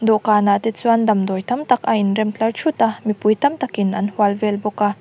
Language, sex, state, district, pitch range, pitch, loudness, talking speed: Mizo, female, Mizoram, Aizawl, 205-225 Hz, 215 Hz, -18 LUFS, 225 wpm